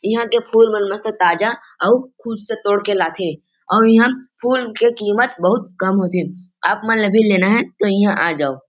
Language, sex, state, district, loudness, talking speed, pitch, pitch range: Chhattisgarhi, male, Chhattisgarh, Rajnandgaon, -16 LUFS, 220 wpm, 215 Hz, 190-230 Hz